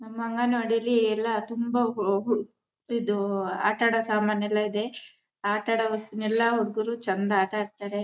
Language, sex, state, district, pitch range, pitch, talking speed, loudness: Kannada, female, Karnataka, Shimoga, 210-230 Hz, 215 Hz, 155 wpm, -27 LUFS